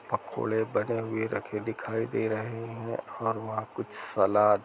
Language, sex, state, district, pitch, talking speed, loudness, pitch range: Hindi, male, Uttar Pradesh, Jalaun, 110 Hz, 170 wpm, -31 LUFS, 110-115 Hz